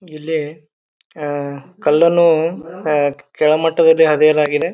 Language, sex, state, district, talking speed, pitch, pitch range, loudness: Kannada, male, Karnataka, Bijapur, 75 wpm, 155 Hz, 150-165 Hz, -15 LUFS